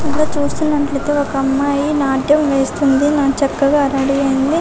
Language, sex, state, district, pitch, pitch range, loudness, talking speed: Telugu, female, Telangana, Karimnagar, 285 Hz, 275-295 Hz, -15 LUFS, 130 wpm